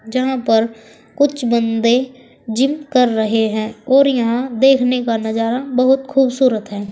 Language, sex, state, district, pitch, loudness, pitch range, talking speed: Hindi, female, Uttar Pradesh, Saharanpur, 245 Hz, -16 LUFS, 225-265 Hz, 140 wpm